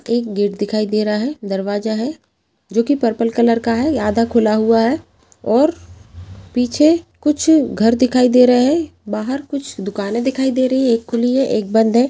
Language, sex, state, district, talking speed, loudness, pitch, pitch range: Hindi, female, Bihar, Jahanabad, 195 wpm, -16 LUFS, 235 Hz, 215-265 Hz